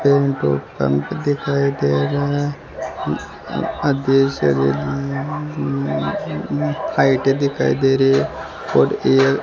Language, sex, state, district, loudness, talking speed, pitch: Hindi, male, Rajasthan, Jaipur, -19 LUFS, 85 wpm, 135 Hz